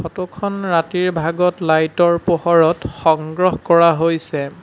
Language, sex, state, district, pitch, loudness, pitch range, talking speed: Assamese, male, Assam, Sonitpur, 170 Hz, -16 LUFS, 160-180 Hz, 130 wpm